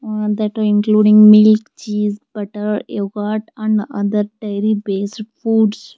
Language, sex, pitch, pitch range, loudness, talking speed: English, female, 210 Hz, 210-215 Hz, -15 LUFS, 120 wpm